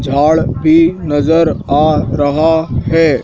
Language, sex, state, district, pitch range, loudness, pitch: Hindi, male, Madhya Pradesh, Dhar, 140-160 Hz, -12 LUFS, 155 Hz